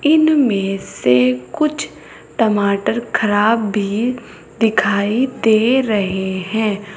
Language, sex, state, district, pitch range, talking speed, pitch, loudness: Hindi, female, Uttar Pradesh, Saharanpur, 195-235 Hz, 85 wpm, 215 Hz, -16 LUFS